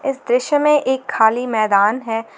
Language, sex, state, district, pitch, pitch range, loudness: Hindi, female, Jharkhand, Garhwa, 245 Hz, 220-270 Hz, -16 LUFS